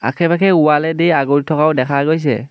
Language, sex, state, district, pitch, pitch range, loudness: Assamese, male, Assam, Kamrup Metropolitan, 150 Hz, 140-165 Hz, -14 LUFS